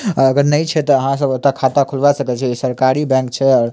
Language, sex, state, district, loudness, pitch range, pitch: Maithili, male, Bihar, Samastipur, -15 LUFS, 130-145 Hz, 135 Hz